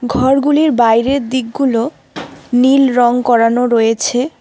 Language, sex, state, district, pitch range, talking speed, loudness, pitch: Bengali, female, West Bengal, Alipurduar, 235-270 Hz, 95 wpm, -13 LUFS, 250 Hz